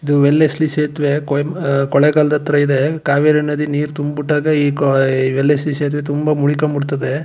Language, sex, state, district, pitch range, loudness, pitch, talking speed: Kannada, male, Karnataka, Chamarajanagar, 140-150 Hz, -16 LUFS, 145 Hz, 150 wpm